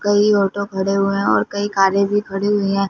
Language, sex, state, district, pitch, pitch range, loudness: Hindi, female, Punjab, Fazilka, 200 Hz, 195-205 Hz, -18 LUFS